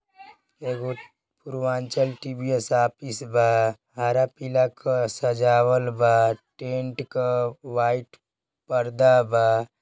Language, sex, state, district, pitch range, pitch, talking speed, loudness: Bhojpuri, male, Uttar Pradesh, Deoria, 120-130 Hz, 125 Hz, 90 wpm, -23 LUFS